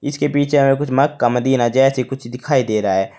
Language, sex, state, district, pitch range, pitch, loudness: Hindi, male, Uttar Pradesh, Saharanpur, 120-145 Hz, 130 Hz, -17 LUFS